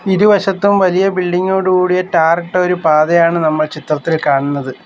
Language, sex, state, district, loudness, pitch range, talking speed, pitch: Malayalam, male, Kerala, Kollam, -13 LUFS, 155-185 Hz, 125 wpm, 175 Hz